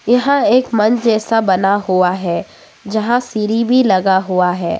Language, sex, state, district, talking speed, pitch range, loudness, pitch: Hindi, female, Arunachal Pradesh, Papum Pare, 160 wpm, 190-235 Hz, -14 LUFS, 215 Hz